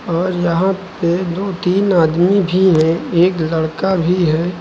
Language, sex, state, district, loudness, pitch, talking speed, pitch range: Hindi, male, Uttar Pradesh, Lucknow, -15 LUFS, 175 Hz, 155 wpm, 170-190 Hz